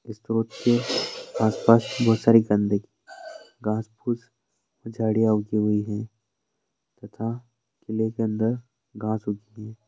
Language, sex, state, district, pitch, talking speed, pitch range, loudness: Hindi, male, Rajasthan, Nagaur, 110 Hz, 120 wpm, 110-120 Hz, -24 LUFS